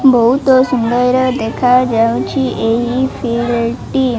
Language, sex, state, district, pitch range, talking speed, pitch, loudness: Odia, female, Odisha, Malkangiri, 235-260 Hz, 70 wpm, 245 Hz, -14 LUFS